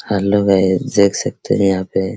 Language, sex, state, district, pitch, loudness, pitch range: Hindi, male, Bihar, Araria, 100 Hz, -15 LUFS, 95-100 Hz